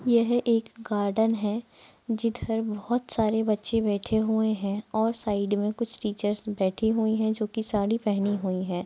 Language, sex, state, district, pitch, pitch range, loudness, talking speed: Hindi, female, Bihar, Araria, 220 Hz, 205-225 Hz, -27 LUFS, 135 wpm